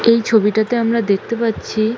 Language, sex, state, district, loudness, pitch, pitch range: Bengali, female, West Bengal, North 24 Parganas, -16 LUFS, 230 Hz, 215-230 Hz